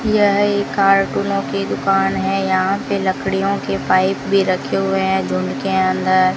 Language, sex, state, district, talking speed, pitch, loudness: Hindi, female, Rajasthan, Bikaner, 180 wpm, 185 Hz, -17 LUFS